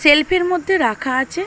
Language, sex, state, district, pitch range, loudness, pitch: Bengali, female, West Bengal, Dakshin Dinajpur, 270-365 Hz, -17 LUFS, 320 Hz